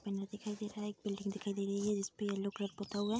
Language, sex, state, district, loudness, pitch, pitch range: Hindi, female, Bihar, Darbhanga, -39 LUFS, 205 Hz, 200-210 Hz